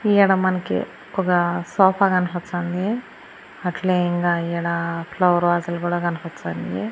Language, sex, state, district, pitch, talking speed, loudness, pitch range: Telugu, female, Andhra Pradesh, Annamaya, 175 Hz, 105 wpm, -21 LUFS, 170-185 Hz